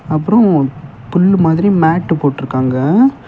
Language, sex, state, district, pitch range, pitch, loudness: Tamil, male, Tamil Nadu, Kanyakumari, 140-185 Hz, 160 Hz, -13 LUFS